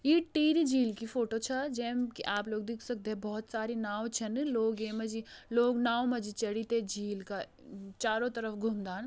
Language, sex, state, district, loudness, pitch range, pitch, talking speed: Hindi, female, Uttarakhand, Uttarkashi, -33 LUFS, 215-245 Hz, 225 Hz, 200 wpm